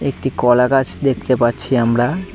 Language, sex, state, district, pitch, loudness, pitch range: Bengali, male, West Bengal, Cooch Behar, 125 Hz, -16 LUFS, 120-135 Hz